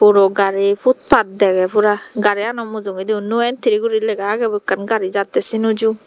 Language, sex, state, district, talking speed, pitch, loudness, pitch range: Chakma, female, Tripura, Dhalai, 190 wpm, 210 Hz, -17 LUFS, 200-230 Hz